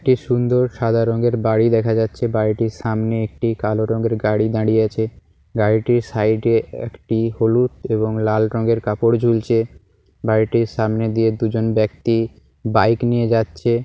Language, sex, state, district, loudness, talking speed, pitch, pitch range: Bengali, male, West Bengal, Paschim Medinipur, -18 LUFS, 140 wpm, 110 Hz, 110-115 Hz